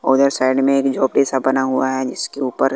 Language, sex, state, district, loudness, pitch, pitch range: Hindi, male, Bihar, West Champaran, -17 LUFS, 135 Hz, 130-135 Hz